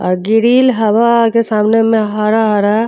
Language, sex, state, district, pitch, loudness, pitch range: Bhojpuri, female, Uttar Pradesh, Deoria, 220 Hz, -12 LUFS, 210-230 Hz